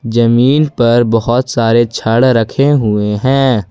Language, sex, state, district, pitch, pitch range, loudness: Hindi, male, Jharkhand, Ranchi, 120 Hz, 115-130 Hz, -11 LUFS